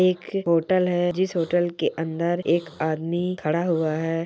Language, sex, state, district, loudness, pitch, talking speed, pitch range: Hindi, male, West Bengal, Purulia, -24 LUFS, 170 Hz, 170 wpm, 165-180 Hz